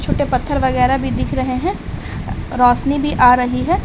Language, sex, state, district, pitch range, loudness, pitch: Hindi, female, Bihar, Saharsa, 250-280 Hz, -16 LUFS, 255 Hz